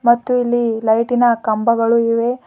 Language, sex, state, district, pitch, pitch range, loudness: Kannada, female, Karnataka, Bidar, 235 Hz, 230-240 Hz, -16 LUFS